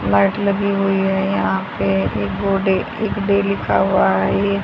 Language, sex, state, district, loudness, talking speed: Hindi, female, Haryana, Rohtak, -18 LUFS, 180 wpm